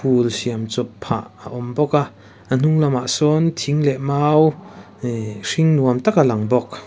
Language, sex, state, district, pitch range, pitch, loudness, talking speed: Mizo, male, Mizoram, Aizawl, 115-150 Hz, 130 Hz, -19 LUFS, 190 wpm